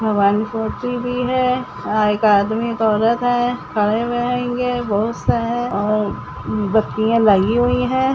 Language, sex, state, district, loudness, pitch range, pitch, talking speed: Hindi, female, Chhattisgarh, Sukma, -18 LUFS, 210-245 Hz, 230 Hz, 130 wpm